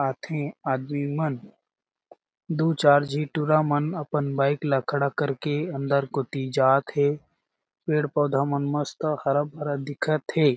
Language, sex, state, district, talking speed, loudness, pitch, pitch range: Chhattisgarhi, male, Chhattisgarh, Jashpur, 135 wpm, -25 LUFS, 145 Hz, 140-150 Hz